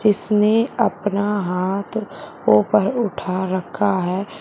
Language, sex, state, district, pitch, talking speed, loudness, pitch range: Hindi, female, Uttar Pradesh, Shamli, 200 Hz, 95 wpm, -20 LUFS, 185-210 Hz